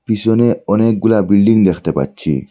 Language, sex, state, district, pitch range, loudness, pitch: Bengali, male, Assam, Hailakandi, 95-115 Hz, -14 LUFS, 105 Hz